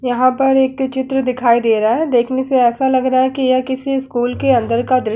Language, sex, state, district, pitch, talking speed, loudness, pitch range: Hindi, female, Uttar Pradesh, Jalaun, 255 Hz, 270 wpm, -15 LUFS, 245-265 Hz